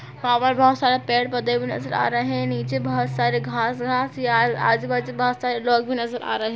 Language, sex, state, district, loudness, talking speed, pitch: Hindi, female, Uttar Pradesh, Etah, -22 LUFS, 220 wpm, 240 Hz